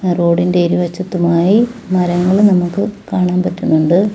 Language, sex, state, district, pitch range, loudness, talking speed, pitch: Malayalam, female, Kerala, Kollam, 175-195 Hz, -14 LUFS, 85 wpm, 180 Hz